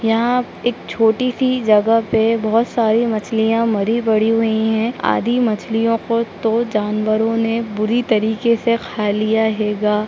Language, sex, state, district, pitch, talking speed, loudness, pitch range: Hindi, female, Bihar, Saran, 225 Hz, 155 wpm, -17 LUFS, 215-230 Hz